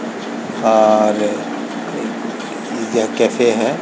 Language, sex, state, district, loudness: Hindi, male, Uttar Pradesh, Varanasi, -17 LUFS